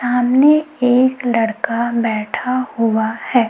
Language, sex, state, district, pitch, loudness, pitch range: Hindi, female, Chhattisgarh, Raipur, 245 Hz, -16 LUFS, 230-255 Hz